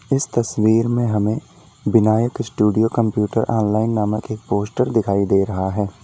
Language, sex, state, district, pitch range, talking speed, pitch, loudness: Hindi, male, Uttar Pradesh, Lalitpur, 105-115 Hz, 120 wpm, 110 Hz, -19 LUFS